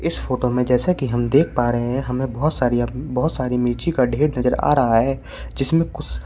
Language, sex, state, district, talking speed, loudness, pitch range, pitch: Hindi, male, Uttar Pradesh, Shamli, 230 wpm, -20 LUFS, 120-140 Hz, 125 Hz